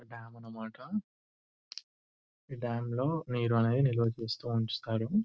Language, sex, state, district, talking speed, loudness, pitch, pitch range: Telugu, male, Telangana, Nalgonda, 115 wpm, -33 LUFS, 115 Hz, 110-125 Hz